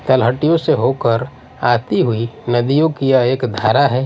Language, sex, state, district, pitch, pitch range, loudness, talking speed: Hindi, male, Odisha, Nuapada, 125 Hz, 120-135 Hz, -16 LUFS, 160 wpm